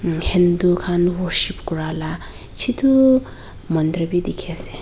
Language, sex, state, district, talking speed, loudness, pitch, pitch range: Nagamese, female, Nagaland, Dimapur, 125 wpm, -18 LUFS, 175 Hz, 165-190 Hz